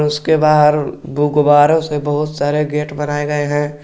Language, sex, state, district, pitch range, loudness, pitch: Hindi, male, Jharkhand, Garhwa, 145-150 Hz, -15 LUFS, 150 Hz